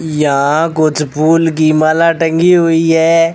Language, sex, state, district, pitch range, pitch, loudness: Hindi, male, Rajasthan, Bikaner, 155-165 Hz, 160 Hz, -11 LUFS